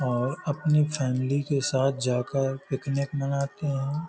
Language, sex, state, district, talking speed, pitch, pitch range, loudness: Hindi, male, Uttar Pradesh, Hamirpur, 145 wpm, 140 Hz, 135-145 Hz, -27 LUFS